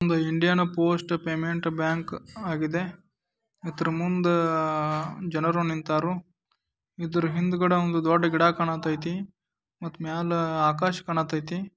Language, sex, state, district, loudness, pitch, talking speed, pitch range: Kannada, male, Karnataka, Dharwad, -26 LUFS, 170 Hz, 100 wpm, 160-175 Hz